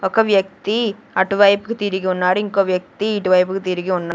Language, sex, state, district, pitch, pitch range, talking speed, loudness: Telugu, female, Andhra Pradesh, Sri Satya Sai, 195 Hz, 185-210 Hz, 145 wpm, -18 LUFS